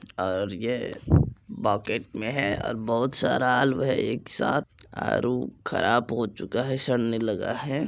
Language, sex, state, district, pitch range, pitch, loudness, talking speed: Maithili, male, Bihar, Supaul, 115-130 Hz, 125 Hz, -26 LUFS, 150 wpm